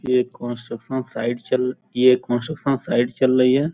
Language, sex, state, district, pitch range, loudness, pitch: Hindi, male, Uttar Pradesh, Gorakhpur, 120-130 Hz, -21 LUFS, 125 Hz